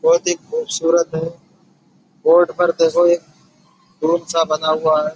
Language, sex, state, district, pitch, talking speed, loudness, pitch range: Hindi, male, Uttar Pradesh, Budaun, 170 Hz, 140 wpm, -17 LUFS, 165-185 Hz